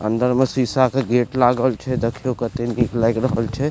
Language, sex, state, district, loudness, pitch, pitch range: Maithili, male, Bihar, Supaul, -19 LUFS, 125 Hz, 115-130 Hz